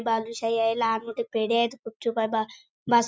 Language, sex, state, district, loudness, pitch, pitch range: Marathi, female, Maharashtra, Chandrapur, -27 LUFS, 230 Hz, 225-235 Hz